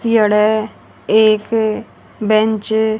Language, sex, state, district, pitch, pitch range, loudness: Hindi, female, Haryana, Rohtak, 215 Hz, 215-220 Hz, -15 LUFS